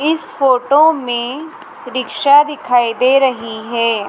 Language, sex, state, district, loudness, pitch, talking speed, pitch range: Hindi, female, Madhya Pradesh, Dhar, -14 LUFS, 255 Hz, 115 wpm, 240-290 Hz